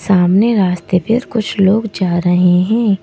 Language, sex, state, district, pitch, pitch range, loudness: Hindi, male, Madhya Pradesh, Bhopal, 195 Hz, 180-220 Hz, -13 LUFS